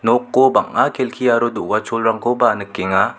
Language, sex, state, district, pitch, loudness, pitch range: Garo, male, Meghalaya, West Garo Hills, 120 Hz, -17 LUFS, 110-125 Hz